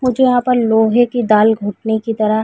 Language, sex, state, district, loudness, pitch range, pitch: Hindi, female, Chhattisgarh, Raigarh, -14 LUFS, 220-245 Hz, 225 Hz